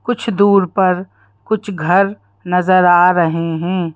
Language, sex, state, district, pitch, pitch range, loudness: Hindi, female, Madhya Pradesh, Bhopal, 180 Hz, 170-200 Hz, -14 LUFS